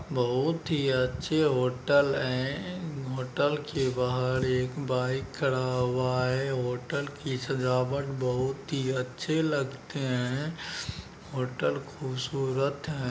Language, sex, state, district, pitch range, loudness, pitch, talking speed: Hindi, male, Bihar, Araria, 125-140 Hz, -29 LUFS, 130 Hz, 115 wpm